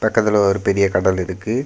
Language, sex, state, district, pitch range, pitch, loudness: Tamil, male, Tamil Nadu, Kanyakumari, 95-110 Hz, 100 Hz, -17 LUFS